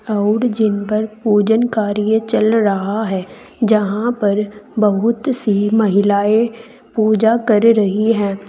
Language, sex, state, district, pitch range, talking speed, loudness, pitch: Hindi, female, Uttar Pradesh, Saharanpur, 205-225 Hz, 120 wpm, -16 LUFS, 215 Hz